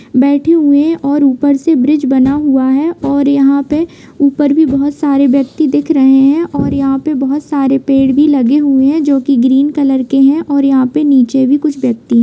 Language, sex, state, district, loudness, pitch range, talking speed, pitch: Hindi, female, Bihar, Begusarai, -11 LUFS, 270-295 Hz, 225 wpm, 280 Hz